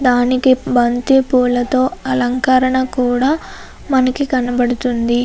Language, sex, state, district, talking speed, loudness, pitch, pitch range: Telugu, female, Andhra Pradesh, Anantapur, 70 wpm, -15 LUFS, 255 Hz, 245-260 Hz